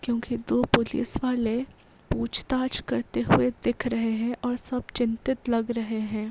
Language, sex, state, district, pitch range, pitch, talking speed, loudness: Hindi, female, Uttar Pradesh, Varanasi, 225-250 Hz, 240 Hz, 150 wpm, -27 LUFS